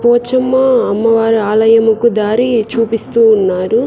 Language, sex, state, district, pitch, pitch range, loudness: Telugu, female, Telangana, Karimnagar, 225 Hz, 220-240 Hz, -11 LUFS